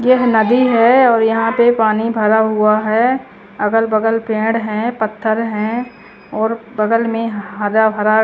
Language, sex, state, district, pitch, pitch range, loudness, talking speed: Hindi, female, Chandigarh, Chandigarh, 225 Hz, 215-230 Hz, -15 LUFS, 160 wpm